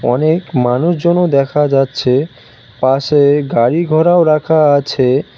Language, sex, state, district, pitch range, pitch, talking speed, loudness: Bengali, male, West Bengal, Cooch Behar, 130-160 Hz, 145 Hz, 90 wpm, -12 LUFS